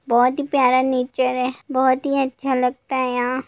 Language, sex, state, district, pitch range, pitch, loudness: Hindi, female, Bihar, Gopalganj, 250-265 Hz, 255 Hz, -20 LUFS